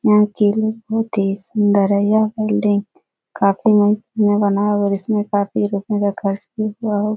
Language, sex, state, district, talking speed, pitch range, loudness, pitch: Hindi, female, Bihar, Jahanabad, 195 wpm, 200-215 Hz, -18 LUFS, 210 Hz